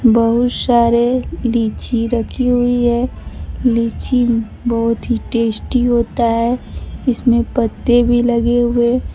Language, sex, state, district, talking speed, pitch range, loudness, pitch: Hindi, female, Bihar, Kaimur, 120 wpm, 235-245 Hz, -16 LUFS, 240 Hz